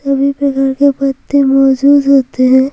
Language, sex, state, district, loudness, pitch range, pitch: Hindi, female, Bihar, Patna, -11 LUFS, 270-280 Hz, 275 Hz